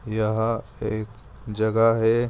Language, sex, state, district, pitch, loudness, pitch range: Hindi, male, Jharkhand, Sahebganj, 110 Hz, -23 LUFS, 110-115 Hz